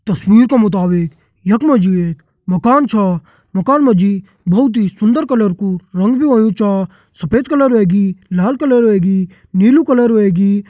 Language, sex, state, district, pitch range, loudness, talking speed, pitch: Kumaoni, male, Uttarakhand, Tehri Garhwal, 185-240 Hz, -13 LUFS, 175 wpm, 200 Hz